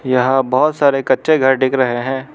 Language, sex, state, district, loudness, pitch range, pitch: Hindi, male, Arunachal Pradesh, Lower Dibang Valley, -15 LUFS, 130-140 Hz, 135 Hz